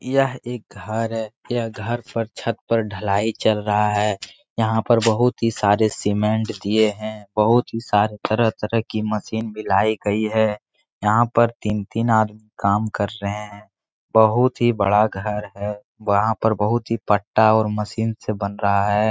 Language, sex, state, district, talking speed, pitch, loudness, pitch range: Hindi, male, Bihar, Jahanabad, 175 wpm, 110 Hz, -21 LUFS, 105-115 Hz